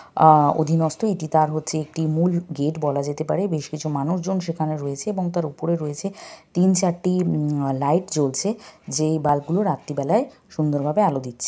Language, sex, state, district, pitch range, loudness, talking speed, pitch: Bengali, female, West Bengal, North 24 Parganas, 150-180 Hz, -22 LUFS, 180 wpm, 155 Hz